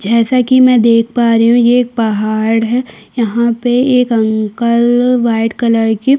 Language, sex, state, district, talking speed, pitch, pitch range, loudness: Hindi, female, Chhattisgarh, Kabirdham, 185 wpm, 235 Hz, 225-245 Hz, -12 LUFS